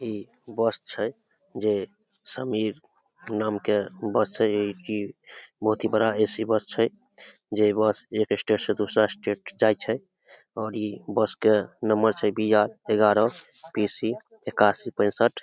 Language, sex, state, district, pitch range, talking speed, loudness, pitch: Maithili, male, Bihar, Samastipur, 105-115 Hz, 145 wpm, -25 LUFS, 110 Hz